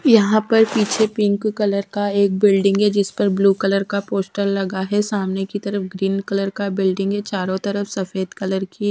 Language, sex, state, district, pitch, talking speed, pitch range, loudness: Hindi, female, Haryana, Rohtak, 200 Hz, 200 wpm, 195-205 Hz, -19 LUFS